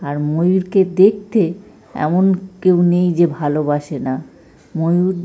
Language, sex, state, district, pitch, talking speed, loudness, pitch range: Bengali, male, West Bengal, North 24 Parganas, 175 Hz, 115 wpm, -16 LUFS, 150-185 Hz